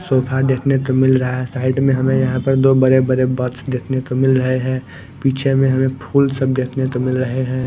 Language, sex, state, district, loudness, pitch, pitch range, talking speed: Hindi, male, Bihar, West Champaran, -17 LUFS, 130 Hz, 130-135 Hz, 220 wpm